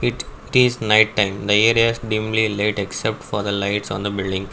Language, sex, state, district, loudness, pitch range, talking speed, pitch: English, male, Karnataka, Bangalore, -19 LUFS, 100-110 Hz, 225 wpm, 105 Hz